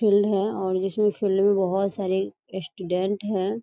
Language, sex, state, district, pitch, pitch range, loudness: Hindi, female, Bihar, East Champaran, 195 Hz, 190-205 Hz, -24 LUFS